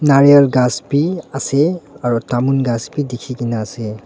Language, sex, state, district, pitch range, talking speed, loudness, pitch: Nagamese, male, Nagaland, Dimapur, 120-145 Hz, 160 wpm, -16 LUFS, 130 Hz